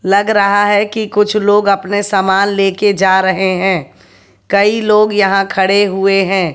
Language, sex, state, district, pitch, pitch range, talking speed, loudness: Hindi, female, Haryana, Jhajjar, 195 Hz, 190-205 Hz, 165 wpm, -12 LUFS